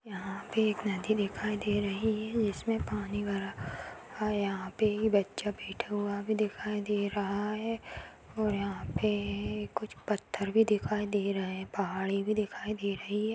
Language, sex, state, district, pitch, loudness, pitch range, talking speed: Kumaoni, female, Uttarakhand, Tehri Garhwal, 205 Hz, -33 LUFS, 200-215 Hz, 165 wpm